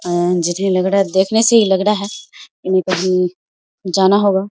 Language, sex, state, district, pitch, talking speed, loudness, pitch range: Hindi, female, Bihar, Samastipur, 190 Hz, 200 wpm, -15 LUFS, 185-200 Hz